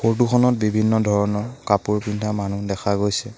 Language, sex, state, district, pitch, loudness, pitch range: Assamese, male, Assam, Sonitpur, 105 Hz, -21 LUFS, 100-115 Hz